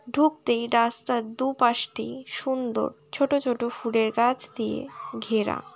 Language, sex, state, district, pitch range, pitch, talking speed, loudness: Bengali, female, West Bengal, Paschim Medinipur, 235-265 Hz, 245 Hz, 105 wpm, -25 LUFS